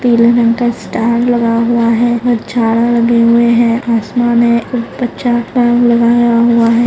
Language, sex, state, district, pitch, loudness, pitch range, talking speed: Hindi, female, Maharashtra, Chandrapur, 235 Hz, -11 LUFS, 230-240 Hz, 175 wpm